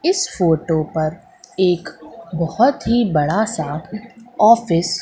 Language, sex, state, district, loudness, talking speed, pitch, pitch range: Hindi, female, Madhya Pradesh, Katni, -18 LUFS, 120 wpm, 180 Hz, 160-225 Hz